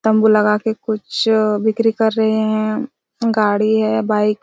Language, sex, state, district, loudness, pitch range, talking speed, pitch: Hindi, female, Chhattisgarh, Raigarh, -17 LUFS, 215-220 Hz, 160 wpm, 220 Hz